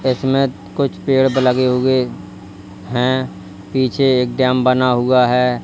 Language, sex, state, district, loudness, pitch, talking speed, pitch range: Hindi, male, Uttar Pradesh, Lalitpur, -16 LUFS, 125 Hz, 140 wpm, 125-130 Hz